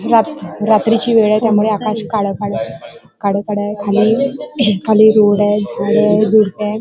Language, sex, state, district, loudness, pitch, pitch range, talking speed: Marathi, female, Maharashtra, Chandrapur, -14 LUFS, 215 Hz, 205-220 Hz, 125 wpm